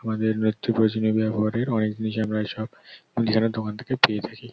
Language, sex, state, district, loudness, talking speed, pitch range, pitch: Bengali, male, West Bengal, North 24 Parganas, -24 LUFS, 170 wpm, 110-115 Hz, 110 Hz